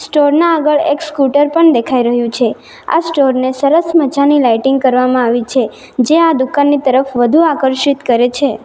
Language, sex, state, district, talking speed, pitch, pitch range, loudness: Gujarati, female, Gujarat, Valsad, 180 wpm, 275 Hz, 255-300 Hz, -12 LUFS